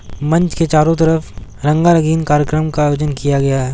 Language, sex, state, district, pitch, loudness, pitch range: Hindi, male, Bihar, Gaya, 150 Hz, -14 LUFS, 145-160 Hz